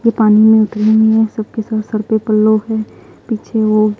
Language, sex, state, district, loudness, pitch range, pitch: Hindi, female, Punjab, Fazilka, -13 LUFS, 215-220 Hz, 220 Hz